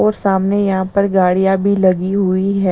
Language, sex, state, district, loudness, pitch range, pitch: Hindi, female, Bihar, West Champaran, -15 LUFS, 185-200 Hz, 195 Hz